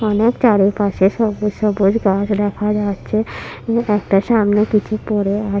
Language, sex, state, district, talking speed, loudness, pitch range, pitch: Bengali, female, West Bengal, Purulia, 130 wpm, -17 LUFS, 200-215 Hz, 210 Hz